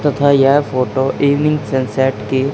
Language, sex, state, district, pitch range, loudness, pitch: Hindi, male, Haryana, Charkhi Dadri, 130-140 Hz, -15 LUFS, 135 Hz